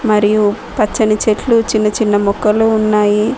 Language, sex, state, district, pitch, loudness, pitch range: Telugu, female, Telangana, Mahabubabad, 215 Hz, -13 LUFS, 210-220 Hz